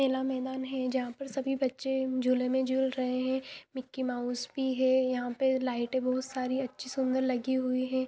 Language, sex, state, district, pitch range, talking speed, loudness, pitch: Hindi, female, Jharkhand, Jamtara, 255-265 Hz, 195 wpm, -31 LUFS, 260 Hz